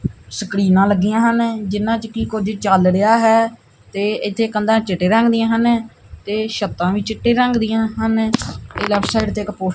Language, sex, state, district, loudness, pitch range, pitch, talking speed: Punjabi, male, Punjab, Kapurthala, -17 LUFS, 200-225 Hz, 220 Hz, 185 wpm